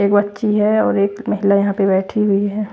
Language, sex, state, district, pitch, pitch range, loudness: Hindi, female, Bihar, West Champaran, 205 Hz, 200-210 Hz, -16 LUFS